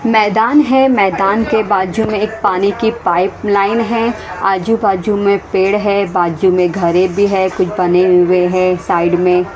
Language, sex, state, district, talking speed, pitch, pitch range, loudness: Hindi, female, Haryana, Rohtak, 170 wpm, 195 Hz, 180-215 Hz, -13 LUFS